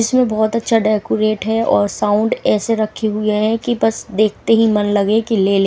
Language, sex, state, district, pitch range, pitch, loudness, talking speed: Hindi, female, Himachal Pradesh, Shimla, 210-225 Hz, 215 Hz, -16 LUFS, 210 wpm